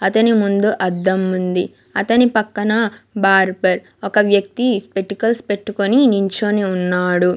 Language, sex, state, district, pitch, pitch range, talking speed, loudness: Telugu, female, Andhra Pradesh, Sri Satya Sai, 200 Hz, 190-220 Hz, 105 wpm, -17 LUFS